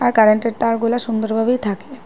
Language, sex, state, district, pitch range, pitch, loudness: Bengali, female, Assam, Hailakandi, 220-240 Hz, 230 Hz, -18 LUFS